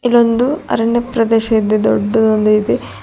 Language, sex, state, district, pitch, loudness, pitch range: Kannada, female, Karnataka, Bidar, 225 Hz, -14 LUFS, 215-240 Hz